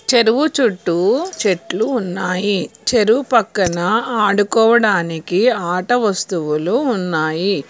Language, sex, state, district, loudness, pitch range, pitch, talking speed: Telugu, female, Telangana, Hyderabad, -16 LUFS, 180-235 Hz, 205 Hz, 80 wpm